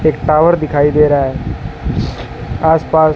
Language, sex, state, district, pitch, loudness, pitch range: Hindi, male, Rajasthan, Bikaner, 150 Hz, -14 LUFS, 135-155 Hz